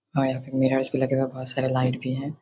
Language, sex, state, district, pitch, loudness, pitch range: Hindi, male, Bihar, Darbhanga, 130 Hz, -25 LUFS, 130-135 Hz